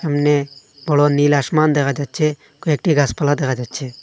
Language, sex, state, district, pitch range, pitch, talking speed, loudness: Bengali, male, Assam, Hailakandi, 140-150 Hz, 145 Hz, 150 wpm, -17 LUFS